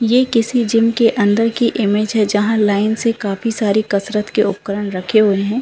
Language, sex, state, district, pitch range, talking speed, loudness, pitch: Hindi, female, Uttarakhand, Uttarkashi, 205-230 Hz, 190 wpm, -16 LUFS, 215 Hz